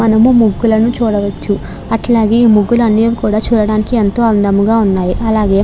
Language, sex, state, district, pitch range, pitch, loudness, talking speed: Telugu, female, Andhra Pradesh, Krishna, 210-230 Hz, 220 Hz, -12 LUFS, 140 wpm